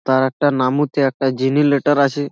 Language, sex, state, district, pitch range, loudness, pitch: Bengali, male, West Bengal, Malda, 130-145 Hz, -17 LUFS, 140 Hz